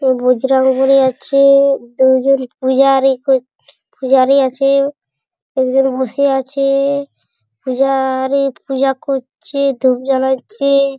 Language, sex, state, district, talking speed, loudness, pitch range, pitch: Bengali, male, West Bengal, Purulia, 75 wpm, -14 LUFS, 260-275 Hz, 270 Hz